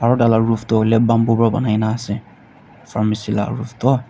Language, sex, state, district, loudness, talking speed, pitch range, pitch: Nagamese, male, Nagaland, Dimapur, -18 LUFS, 220 wpm, 110-120 Hz, 115 Hz